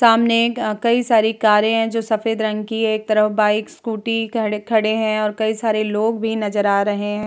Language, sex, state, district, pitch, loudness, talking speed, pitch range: Hindi, female, Bihar, Vaishali, 220 Hz, -18 LUFS, 225 wpm, 215-225 Hz